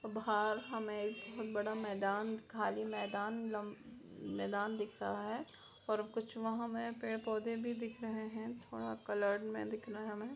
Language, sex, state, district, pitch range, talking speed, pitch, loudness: Hindi, female, Bihar, Purnia, 210-225 Hz, 155 wpm, 220 Hz, -40 LUFS